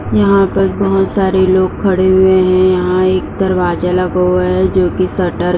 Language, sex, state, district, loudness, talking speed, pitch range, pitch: Hindi, female, Uttar Pradesh, Jyotiba Phule Nagar, -12 LUFS, 185 wpm, 180-190 Hz, 185 Hz